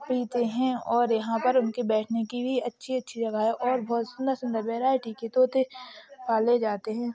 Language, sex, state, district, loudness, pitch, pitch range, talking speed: Hindi, female, Uttar Pradesh, Hamirpur, -27 LUFS, 240 Hz, 225-255 Hz, 195 wpm